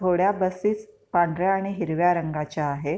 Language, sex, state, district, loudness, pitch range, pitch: Marathi, female, Maharashtra, Pune, -24 LUFS, 160-195 Hz, 180 Hz